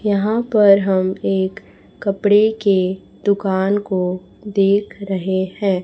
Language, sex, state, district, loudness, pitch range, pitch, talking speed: Hindi, female, Chhattisgarh, Raipur, -18 LUFS, 190-205 Hz, 200 Hz, 115 wpm